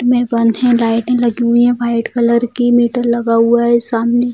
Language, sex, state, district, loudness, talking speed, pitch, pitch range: Hindi, female, Bihar, Jamui, -13 LUFS, 195 wpm, 235 Hz, 235-245 Hz